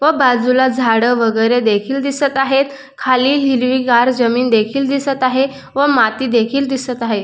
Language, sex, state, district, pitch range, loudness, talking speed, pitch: Marathi, female, Maharashtra, Dhule, 240-275 Hz, -14 LUFS, 165 wpm, 255 Hz